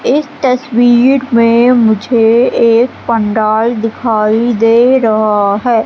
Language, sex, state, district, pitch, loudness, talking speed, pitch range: Hindi, female, Madhya Pradesh, Katni, 230 Hz, -10 LUFS, 100 wpm, 220-245 Hz